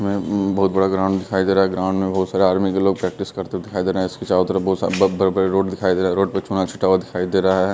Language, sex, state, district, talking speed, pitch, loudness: Hindi, male, Bihar, West Champaran, 320 wpm, 95 Hz, -19 LUFS